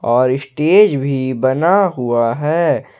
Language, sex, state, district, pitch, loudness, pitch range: Hindi, male, Jharkhand, Ranchi, 135 Hz, -15 LUFS, 130-165 Hz